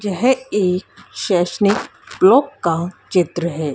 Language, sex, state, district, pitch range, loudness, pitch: Hindi, female, Haryana, Jhajjar, 175-210 Hz, -18 LUFS, 185 Hz